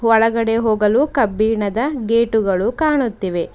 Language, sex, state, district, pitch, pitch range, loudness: Kannada, female, Karnataka, Bidar, 225 Hz, 215-235 Hz, -17 LUFS